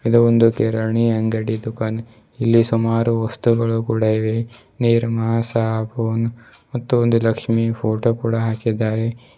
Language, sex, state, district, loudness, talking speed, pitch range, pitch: Kannada, male, Karnataka, Bidar, -19 LUFS, 110 wpm, 110-115 Hz, 115 Hz